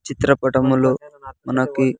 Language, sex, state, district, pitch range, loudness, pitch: Telugu, male, Andhra Pradesh, Sri Satya Sai, 130-140 Hz, -19 LUFS, 130 Hz